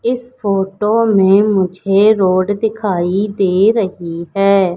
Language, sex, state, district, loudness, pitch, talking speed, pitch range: Hindi, female, Madhya Pradesh, Katni, -14 LUFS, 195 Hz, 115 wpm, 190-215 Hz